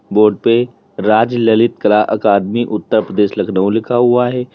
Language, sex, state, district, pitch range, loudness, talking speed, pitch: Hindi, male, Uttar Pradesh, Lalitpur, 105-120 Hz, -14 LUFS, 160 wpm, 110 Hz